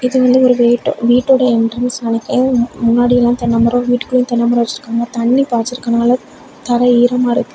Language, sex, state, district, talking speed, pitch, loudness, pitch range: Tamil, female, Tamil Nadu, Kanyakumari, 150 wpm, 245 Hz, -13 LUFS, 235-250 Hz